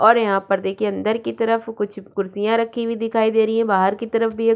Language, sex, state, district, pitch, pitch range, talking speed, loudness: Hindi, female, Chhattisgarh, Kabirdham, 225 Hz, 200-230 Hz, 265 wpm, -20 LUFS